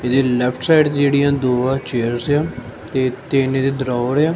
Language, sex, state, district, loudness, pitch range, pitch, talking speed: Punjabi, male, Punjab, Kapurthala, -18 LUFS, 125-140 Hz, 130 Hz, 180 wpm